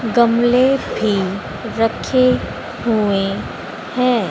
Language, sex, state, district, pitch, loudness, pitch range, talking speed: Hindi, female, Madhya Pradesh, Dhar, 230 Hz, -17 LUFS, 210-250 Hz, 70 wpm